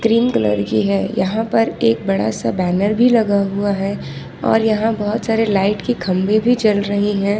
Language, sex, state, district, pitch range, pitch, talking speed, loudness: Hindi, female, Jharkhand, Ranchi, 195-225 Hz, 205 Hz, 205 wpm, -17 LUFS